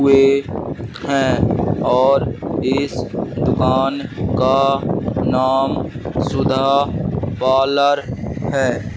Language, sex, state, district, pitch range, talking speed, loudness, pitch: Hindi, male, Madhya Pradesh, Katni, 130-135 Hz, 65 wpm, -18 LUFS, 135 Hz